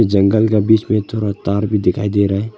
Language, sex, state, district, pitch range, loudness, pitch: Hindi, male, Arunachal Pradesh, Longding, 100-110 Hz, -16 LUFS, 105 Hz